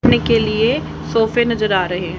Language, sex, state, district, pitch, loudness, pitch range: Hindi, female, Haryana, Charkhi Dadri, 220 Hz, -17 LUFS, 185-230 Hz